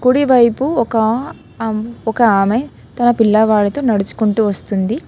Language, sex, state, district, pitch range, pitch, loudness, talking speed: Telugu, female, Telangana, Hyderabad, 215-240 Hz, 225 Hz, -15 LUFS, 120 wpm